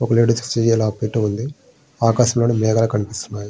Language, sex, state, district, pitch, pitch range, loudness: Telugu, male, Andhra Pradesh, Srikakulam, 115 Hz, 110-120 Hz, -18 LUFS